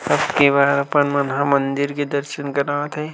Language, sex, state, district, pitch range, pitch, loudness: Chhattisgarhi, male, Chhattisgarh, Rajnandgaon, 140-145 Hz, 140 Hz, -19 LUFS